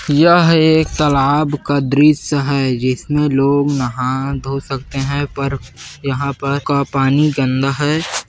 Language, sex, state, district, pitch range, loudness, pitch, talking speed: Hindi, male, Chhattisgarh, Kabirdham, 135-145 Hz, -15 LUFS, 140 Hz, 145 wpm